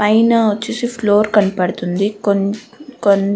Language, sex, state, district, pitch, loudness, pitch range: Telugu, female, Andhra Pradesh, Guntur, 210 Hz, -16 LUFS, 200-230 Hz